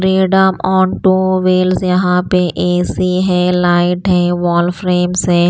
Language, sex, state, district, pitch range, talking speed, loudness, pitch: Hindi, female, Punjab, Pathankot, 180-185 Hz, 155 wpm, -13 LUFS, 180 Hz